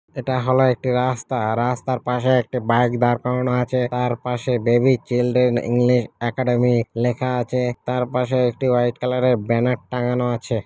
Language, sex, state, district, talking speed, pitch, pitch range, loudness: Bengali, male, West Bengal, Malda, 160 wpm, 125 Hz, 120-125 Hz, -20 LUFS